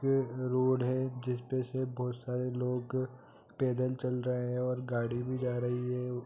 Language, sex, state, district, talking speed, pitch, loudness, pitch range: Hindi, male, Jharkhand, Jamtara, 170 wpm, 125 Hz, -34 LUFS, 125-130 Hz